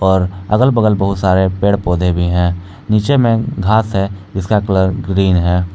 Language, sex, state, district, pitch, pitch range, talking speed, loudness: Hindi, male, Jharkhand, Palamu, 95 Hz, 95-105 Hz, 175 wpm, -14 LUFS